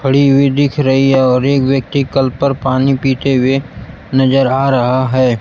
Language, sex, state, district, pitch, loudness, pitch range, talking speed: Hindi, male, Bihar, Kaimur, 135 Hz, -13 LUFS, 130-135 Hz, 190 wpm